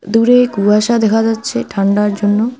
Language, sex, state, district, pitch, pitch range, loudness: Bengali, female, West Bengal, Alipurduar, 220 Hz, 205-235 Hz, -13 LUFS